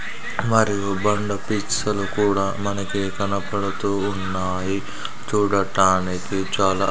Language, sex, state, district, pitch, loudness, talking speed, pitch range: Telugu, male, Andhra Pradesh, Sri Satya Sai, 100 Hz, -22 LUFS, 85 wpm, 95-100 Hz